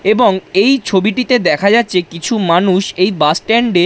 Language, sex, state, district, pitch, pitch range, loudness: Bengali, male, West Bengal, Dakshin Dinajpur, 200 Hz, 180-230 Hz, -13 LUFS